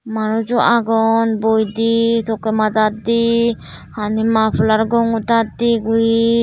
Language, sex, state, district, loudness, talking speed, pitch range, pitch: Chakma, female, Tripura, Dhalai, -16 LUFS, 105 wpm, 220-230 Hz, 225 Hz